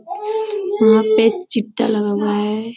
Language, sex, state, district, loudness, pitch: Hindi, female, Bihar, Jamui, -17 LUFS, 225 Hz